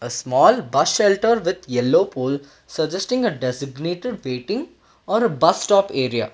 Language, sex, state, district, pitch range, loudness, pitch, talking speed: English, male, Karnataka, Bangalore, 130-205 Hz, -20 LUFS, 170 Hz, 150 wpm